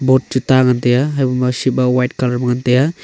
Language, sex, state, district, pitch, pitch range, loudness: Wancho, male, Arunachal Pradesh, Longding, 130 Hz, 125-130 Hz, -15 LUFS